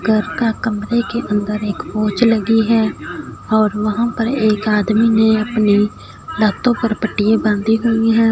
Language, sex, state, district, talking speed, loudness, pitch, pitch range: Hindi, female, Punjab, Fazilka, 150 wpm, -16 LUFS, 220 Hz, 210-225 Hz